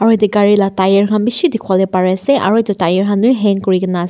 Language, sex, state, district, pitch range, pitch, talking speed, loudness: Nagamese, female, Nagaland, Dimapur, 190-225 Hz, 205 Hz, 220 wpm, -13 LUFS